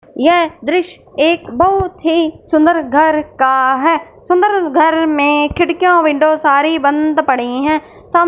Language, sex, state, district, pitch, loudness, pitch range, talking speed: Hindi, female, Punjab, Fazilka, 315 Hz, -13 LUFS, 295-340 Hz, 140 wpm